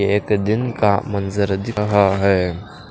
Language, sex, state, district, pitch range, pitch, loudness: Hindi, male, Maharashtra, Washim, 100-105 Hz, 100 Hz, -18 LUFS